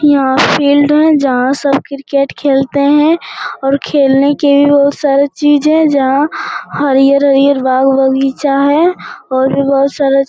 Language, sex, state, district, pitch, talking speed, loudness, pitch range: Hindi, female, Bihar, Jamui, 280 Hz, 140 wpm, -11 LUFS, 275-290 Hz